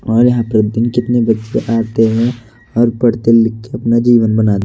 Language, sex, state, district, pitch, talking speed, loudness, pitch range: Hindi, male, Delhi, New Delhi, 115 Hz, 180 wpm, -13 LUFS, 110-120 Hz